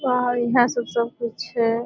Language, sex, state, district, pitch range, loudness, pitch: Maithili, female, Bihar, Supaul, 235-245 Hz, -22 LUFS, 240 Hz